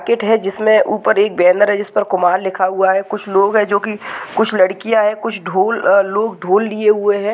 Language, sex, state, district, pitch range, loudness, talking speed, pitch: Hindi, female, Bihar, Madhepura, 195-215 Hz, -15 LUFS, 235 wpm, 205 Hz